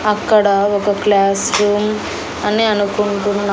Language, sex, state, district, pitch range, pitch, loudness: Telugu, female, Andhra Pradesh, Annamaya, 200-210 Hz, 205 Hz, -15 LUFS